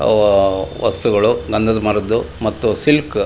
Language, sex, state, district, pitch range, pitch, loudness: Kannada, male, Karnataka, Mysore, 100-110 Hz, 105 Hz, -16 LUFS